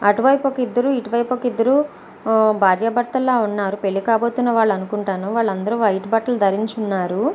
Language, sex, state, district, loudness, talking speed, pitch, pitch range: Telugu, female, Andhra Pradesh, Visakhapatnam, -19 LUFS, 180 wpm, 225 Hz, 205-245 Hz